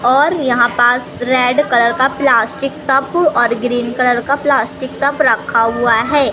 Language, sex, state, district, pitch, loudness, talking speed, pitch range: Hindi, male, Madhya Pradesh, Katni, 255 Hz, -14 LUFS, 160 wpm, 240-280 Hz